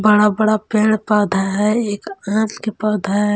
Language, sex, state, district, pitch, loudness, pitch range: Hindi, female, Jharkhand, Palamu, 210 Hz, -17 LUFS, 205-215 Hz